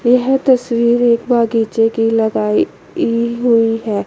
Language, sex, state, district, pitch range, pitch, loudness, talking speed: Hindi, female, Chandigarh, Chandigarh, 225-240 Hz, 230 Hz, -14 LUFS, 135 wpm